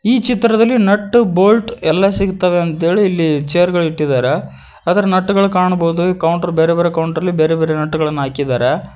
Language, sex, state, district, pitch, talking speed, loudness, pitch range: Kannada, male, Karnataka, Koppal, 175 Hz, 175 wpm, -14 LUFS, 160-200 Hz